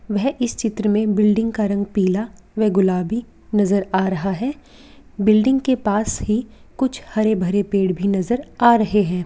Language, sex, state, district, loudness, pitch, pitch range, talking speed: Hindi, female, Jharkhand, Sahebganj, -19 LUFS, 215 Hz, 200-235 Hz, 175 wpm